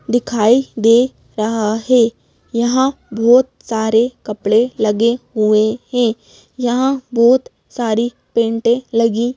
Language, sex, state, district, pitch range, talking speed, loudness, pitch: Hindi, female, Madhya Pradesh, Bhopal, 225-245 Hz, 100 wpm, -16 LUFS, 235 Hz